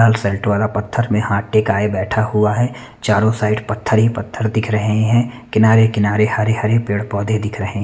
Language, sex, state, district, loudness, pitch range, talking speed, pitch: Hindi, male, Chandigarh, Chandigarh, -17 LUFS, 105-115 Hz, 175 wpm, 110 Hz